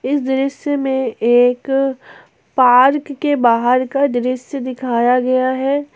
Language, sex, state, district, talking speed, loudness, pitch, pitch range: Hindi, female, Jharkhand, Ranchi, 120 wpm, -16 LUFS, 260 Hz, 250-275 Hz